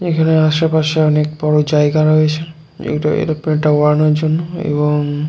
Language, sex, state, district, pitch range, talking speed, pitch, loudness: Bengali, male, West Bengal, Jalpaiguri, 150-155 Hz, 135 wpm, 155 Hz, -14 LUFS